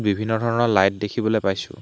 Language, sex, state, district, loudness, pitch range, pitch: Assamese, male, Assam, Hailakandi, -21 LUFS, 100-110 Hz, 110 Hz